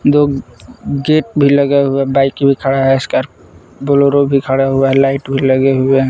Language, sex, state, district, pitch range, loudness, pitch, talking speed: Hindi, male, Jharkhand, Palamu, 135-140 Hz, -13 LUFS, 135 Hz, 195 wpm